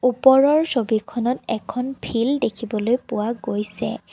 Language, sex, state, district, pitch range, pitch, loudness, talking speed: Assamese, female, Assam, Kamrup Metropolitan, 225-260 Hz, 240 Hz, -21 LUFS, 100 wpm